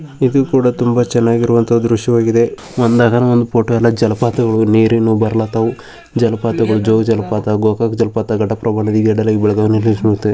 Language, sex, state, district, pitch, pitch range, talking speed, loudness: Kannada, male, Karnataka, Bijapur, 115 Hz, 110-120 Hz, 115 wpm, -14 LUFS